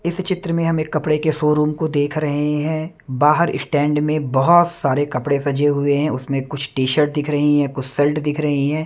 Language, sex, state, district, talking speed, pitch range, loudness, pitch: Hindi, male, Maharashtra, Mumbai Suburban, 225 wpm, 145-155 Hz, -19 LUFS, 150 Hz